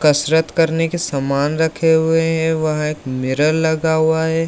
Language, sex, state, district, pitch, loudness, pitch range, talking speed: Hindi, male, Bihar, Lakhisarai, 160 Hz, -17 LUFS, 150-160 Hz, 175 wpm